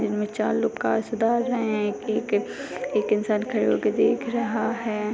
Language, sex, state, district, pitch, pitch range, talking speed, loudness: Hindi, female, Rajasthan, Nagaur, 220 Hz, 210-230 Hz, 150 wpm, -25 LUFS